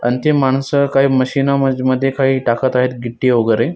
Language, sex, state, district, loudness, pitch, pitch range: Marathi, male, Maharashtra, Dhule, -15 LUFS, 130 Hz, 125-135 Hz